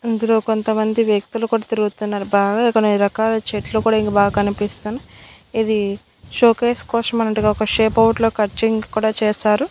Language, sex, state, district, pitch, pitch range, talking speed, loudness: Telugu, female, Andhra Pradesh, Annamaya, 220 Hz, 210-225 Hz, 150 wpm, -18 LUFS